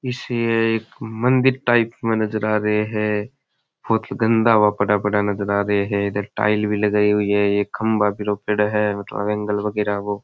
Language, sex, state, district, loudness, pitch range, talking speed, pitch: Rajasthani, male, Rajasthan, Churu, -20 LUFS, 105-115 Hz, 160 wpm, 105 Hz